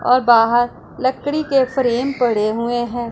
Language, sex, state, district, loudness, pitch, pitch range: Hindi, female, Punjab, Pathankot, -17 LUFS, 240 Hz, 235-260 Hz